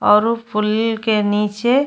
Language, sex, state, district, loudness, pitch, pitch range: Bhojpuri, female, Uttar Pradesh, Ghazipur, -17 LUFS, 220 Hz, 210-230 Hz